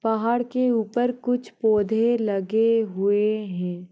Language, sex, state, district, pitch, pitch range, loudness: Hindi, female, Chhattisgarh, Balrampur, 220 Hz, 205-240 Hz, -23 LUFS